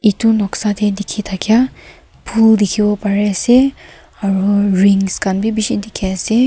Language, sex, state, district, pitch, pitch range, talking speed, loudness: Nagamese, female, Nagaland, Kohima, 210 Hz, 200-220 Hz, 155 wpm, -15 LUFS